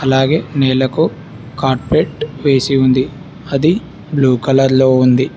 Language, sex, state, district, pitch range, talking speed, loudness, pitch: Telugu, male, Telangana, Hyderabad, 130-150 Hz, 110 wpm, -14 LUFS, 135 Hz